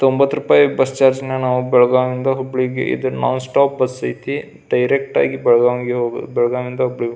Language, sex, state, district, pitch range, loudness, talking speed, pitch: Kannada, male, Karnataka, Belgaum, 125-135 Hz, -17 LUFS, 195 wpm, 130 Hz